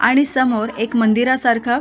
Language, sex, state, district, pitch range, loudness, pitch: Marathi, female, Maharashtra, Solapur, 230-255 Hz, -17 LUFS, 240 Hz